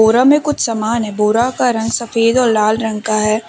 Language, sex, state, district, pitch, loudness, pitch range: Hindi, female, Jharkhand, Deoghar, 225 Hz, -14 LUFS, 215-240 Hz